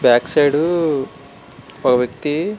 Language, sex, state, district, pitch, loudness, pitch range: Telugu, male, Andhra Pradesh, Srikakulam, 145 Hz, -16 LUFS, 125-160 Hz